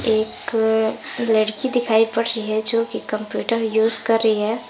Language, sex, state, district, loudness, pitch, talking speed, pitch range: Hindi, female, Jharkhand, Garhwa, -19 LUFS, 220 Hz, 165 wpm, 220-230 Hz